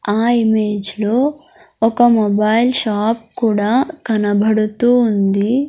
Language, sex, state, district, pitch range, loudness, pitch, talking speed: Telugu, female, Andhra Pradesh, Sri Satya Sai, 210-240 Hz, -15 LUFS, 225 Hz, 95 wpm